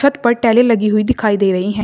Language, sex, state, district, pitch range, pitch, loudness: Hindi, female, Uttar Pradesh, Shamli, 210-240 Hz, 225 Hz, -14 LUFS